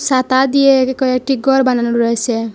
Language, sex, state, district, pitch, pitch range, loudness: Bengali, female, Assam, Hailakandi, 260 Hz, 235-265 Hz, -14 LUFS